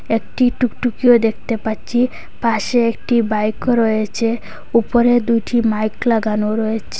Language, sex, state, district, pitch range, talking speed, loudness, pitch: Bengali, female, Assam, Hailakandi, 220-240 Hz, 110 wpm, -17 LUFS, 230 Hz